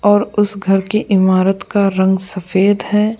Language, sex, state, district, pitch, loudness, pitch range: Hindi, female, Goa, North and South Goa, 200 Hz, -15 LUFS, 190-205 Hz